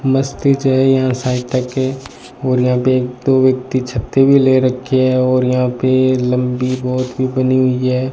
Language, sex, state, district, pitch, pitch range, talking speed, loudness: Hindi, male, Rajasthan, Bikaner, 130 Hz, 125-130 Hz, 175 wpm, -15 LUFS